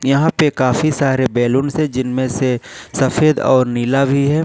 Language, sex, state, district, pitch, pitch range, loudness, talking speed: Hindi, male, Jharkhand, Ranchi, 135 Hz, 130-150 Hz, -16 LUFS, 175 wpm